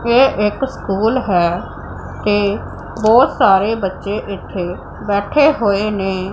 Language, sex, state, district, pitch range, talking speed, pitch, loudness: Punjabi, female, Punjab, Pathankot, 185-225 Hz, 115 wpm, 200 Hz, -16 LUFS